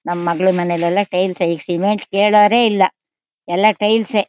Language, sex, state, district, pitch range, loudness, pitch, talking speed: Kannada, female, Karnataka, Shimoga, 175-210 Hz, -16 LUFS, 190 Hz, 310 wpm